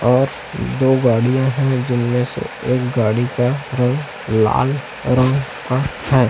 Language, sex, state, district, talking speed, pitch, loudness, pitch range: Hindi, male, Chhattisgarh, Raipur, 135 wpm, 125 Hz, -18 LUFS, 125-130 Hz